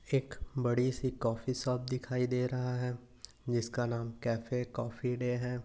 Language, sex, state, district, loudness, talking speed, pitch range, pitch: Hindi, male, Maharashtra, Nagpur, -35 LUFS, 160 wpm, 120-125 Hz, 125 Hz